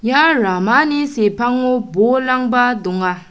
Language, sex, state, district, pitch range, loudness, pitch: Garo, female, Meghalaya, South Garo Hills, 210-255 Hz, -15 LUFS, 245 Hz